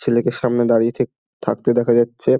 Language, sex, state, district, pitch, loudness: Bengali, male, West Bengal, Dakshin Dinajpur, 120 Hz, -18 LUFS